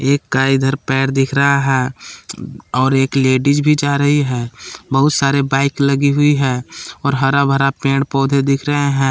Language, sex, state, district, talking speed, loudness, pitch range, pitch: Hindi, male, Jharkhand, Palamu, 185 wpm, -15 LUFS, 135-140 Hz, 135 Hz